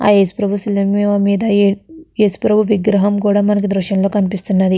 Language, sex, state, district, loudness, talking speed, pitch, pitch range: Telugu, female, Andhra Pradesh, Guntur, -15 LUFS, 150 wpm, 205 Hz, 200-210 Hz